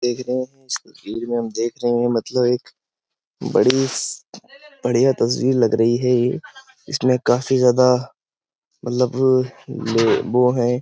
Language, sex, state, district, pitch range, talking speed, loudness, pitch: Hindi, male, Uttar Pradesh, Jyotiba Phule Nagar, 120-130 Hz, 145 wpm, -19 LUFS, 125 Hz